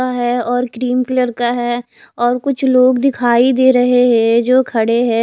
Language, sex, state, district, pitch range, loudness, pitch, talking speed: Hindi, female, Odisha, Khordha, 240-255 Hz, -14 LUFS, 245 Hz, 195 wpm